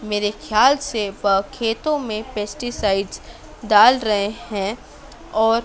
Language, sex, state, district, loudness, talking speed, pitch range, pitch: Hindi, female, Madhya Pradesh, Dhar, -20 LUFS, 115 wpm, 205-240 Hz, 215 Hz